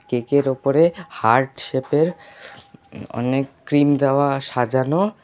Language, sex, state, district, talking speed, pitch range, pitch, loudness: Bengali, male, West Bengal, Alipurduar, 115 wpm, 130-145 Hz, 135 Hz, -19 LUFS